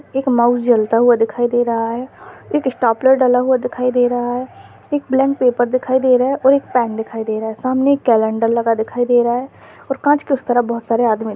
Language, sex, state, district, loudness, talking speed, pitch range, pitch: Hindi, female, Uttar Pradesh, Deoria, -16 LUFS, 250 wpm, 230-260 Hz, 245 Hz